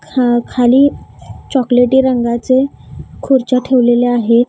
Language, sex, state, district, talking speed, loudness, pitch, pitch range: Marathi, female, Maharashtra, Gondia, 95 wpm, -13 LUFS, 250 Hz, 240-260 Hz